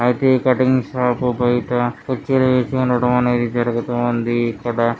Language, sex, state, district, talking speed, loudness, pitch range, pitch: Telugu, male, Andhra Pradesh, Srikakulam, 145 wpm, -18 LUFS, 120-130 Hz, 125 Hz